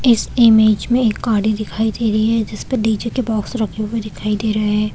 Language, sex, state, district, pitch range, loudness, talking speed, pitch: Hindi, female, Chhattisgarh, Balrampur, 215-230 Hz, -17 LUFS, 230 wpm, 220 Hz